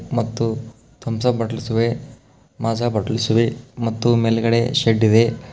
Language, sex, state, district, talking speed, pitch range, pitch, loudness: Kannada, male, Karnataka, Koppal, 130 wpm, 115-120 Hz, 115 Hz, -19 LUFS